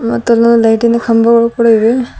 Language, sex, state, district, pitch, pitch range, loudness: Kannada, female, Karnataka, Bidar, 235 Hz, 230-235 Hz, -10 LUFS